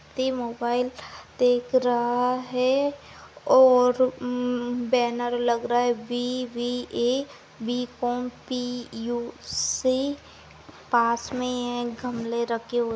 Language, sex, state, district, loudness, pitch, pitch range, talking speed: Hindi, female, Maharashtra, Pune, -25 LUFS, 245 Hz, 240-250 Hz, 90 wpm